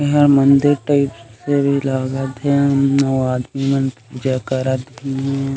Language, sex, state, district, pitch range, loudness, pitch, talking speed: Chhattisgarhi, male, Chhattisgarh, Raigarh, 130-140 Hz, -17 LUFS, 135 Hz, 140 wpm